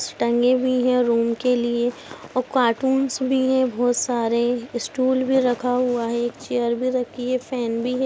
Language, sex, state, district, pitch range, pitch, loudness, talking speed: Hindi, female, Jharkhand, Jamtara, 240-255 Hz, 245 Hz, -21 LUFS, 185 wpm